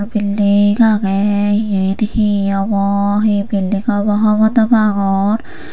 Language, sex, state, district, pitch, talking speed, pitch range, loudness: Chakma, female, Tripura, Unakoti, 205 Hz, 115 wpm, 200-215 Hz, -14 LUFS